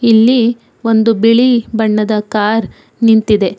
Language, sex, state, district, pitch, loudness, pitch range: Kannada, female, Karnataka, Bangalore, 225 Hz, -12 LUFS, 215-230 Hz